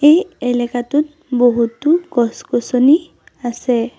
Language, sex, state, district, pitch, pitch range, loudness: Assamese, female, Assam, Sonitpur, 250 Hz, 240-300 Hz, -16 LUFS